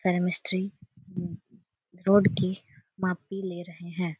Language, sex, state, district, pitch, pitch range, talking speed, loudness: Hindi, female, Uttar Pradesh, Etah, 180 Hz, 175-190 Hz, 115 wpm, -29 LUFS